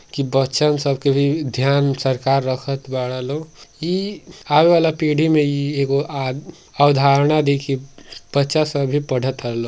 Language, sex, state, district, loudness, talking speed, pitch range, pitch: Bhojpuri, male, Uttar Pradesh, Gorakhpur, -18 LUFS, 160 wpm, 135-150 Hz, 140 Hz